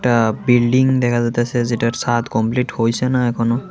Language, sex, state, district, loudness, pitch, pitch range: Bengali, male, Tripura, West Tripura, -17 LUFS, 120 Hz, 115-125 Hz